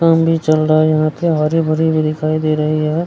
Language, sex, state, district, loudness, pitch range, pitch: Hindi, male, Bihar, Kishanganj, -15 LUFS, 155-165 Hz, 155 Hz